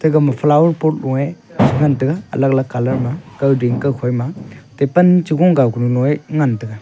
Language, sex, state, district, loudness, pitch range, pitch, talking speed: Wancho, male, Arunachal Pradesh, Longding, -16 LUFS, 130-155 Hz, 140 Hz, 195 wpm